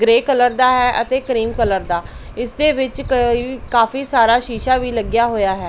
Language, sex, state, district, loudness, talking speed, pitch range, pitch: Punjabi, female, Punjab, Pathankot, -16 LUFS, 180 wpm, 230-255 Hz, 240 Hz